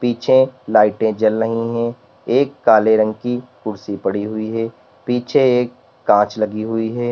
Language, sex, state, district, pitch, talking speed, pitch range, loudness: Hindi, male, Uttar Pradesh, Lalitpur, 115 Hz, 160 wpm, 110-120 Hz, -17 LUFS